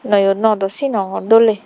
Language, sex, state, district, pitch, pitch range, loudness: Chakma, female, Tripura, Dhalai, 210 Hz, 195-225 Hz, -15 LUFS